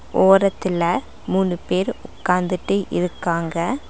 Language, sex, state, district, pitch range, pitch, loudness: Tamil, female, Tamil Nadu, Nilgiris, 170-195 Hz, 180 Hz, -20 LUFS